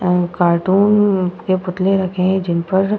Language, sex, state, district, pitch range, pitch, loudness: Hindi, female, Uttar Pradesh, Budaun, 180-195 Hz, 185 Hz, -16 LUFS